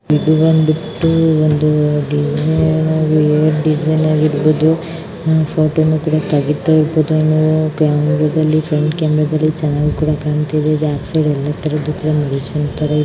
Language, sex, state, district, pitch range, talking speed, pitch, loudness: Kannada, female, Karnataka, Raichur, 150-155 Hz, 90 wpm, 155 Hz, -15 LUFS